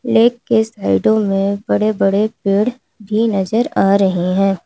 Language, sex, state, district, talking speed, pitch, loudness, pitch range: Hindi, female, Uttar Pradesh, Lalitpur, 155 wpm, 205 Hz, -16 LUFS, 195-225 Hz